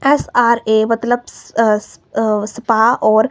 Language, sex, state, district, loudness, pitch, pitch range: Hindi, female, Himachal Pradesh, Shimla, -15 LUFS, 225 Hz, 220-240 Hz